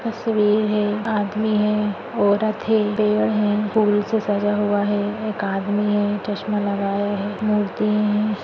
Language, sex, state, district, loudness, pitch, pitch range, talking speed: Hindi, female, Chhattisgarh, Bastar, -21 LUFS, 210 Hz, 205-215 Hz, 150 wpm